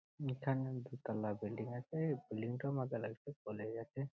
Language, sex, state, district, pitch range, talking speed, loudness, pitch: Bengali, male, West Bengal, Malda, 110-135 Hz, 160 wpm, -42 LUFS, 125 Hz